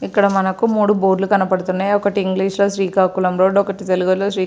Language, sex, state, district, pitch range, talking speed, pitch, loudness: Telugu, female, Andhra Pradesh, Srikakulam, 190-200 Hz, 215 wpm, 195 Hz, -17 LUFS